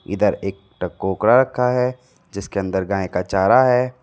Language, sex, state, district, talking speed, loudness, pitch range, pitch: Hindi, male, Uttar Pradesh, Lalitpur, 165 wpm, -19 LUFS, 95-125 Hz, 100 Hz